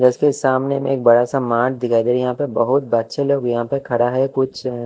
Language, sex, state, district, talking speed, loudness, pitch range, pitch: Hindi, male, Chhattisgarh, Raipur, 260 wpm, -18 LUFS, 120-135 Hz, 125 Hz